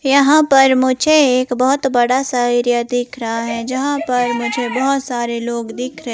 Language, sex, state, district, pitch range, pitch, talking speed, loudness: Hindi, female, Himachal Pradesh, Shimla, 240-270 Hz, 250 Hz, 185 wpm, -16 LUFS